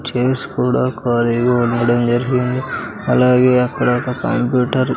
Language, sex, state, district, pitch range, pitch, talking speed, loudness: Telugu, male, Andhra Pradesh, Sri Satya Sai, 120-125 Hz, 125 Hz, 120 wpm, -16 LUFS